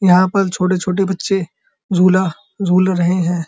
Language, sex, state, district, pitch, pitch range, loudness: Hindi, male, Uttar Pradesh, Muzaffarnagar, 185 Hz, 180-190 Hz, -16 LUFS